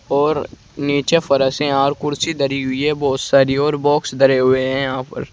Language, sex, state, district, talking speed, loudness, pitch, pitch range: Hindi, male, Uttar Pradesh, Saharanpur, 190 wpm, -17 LUFS, 140 Hz, 135-145 Hz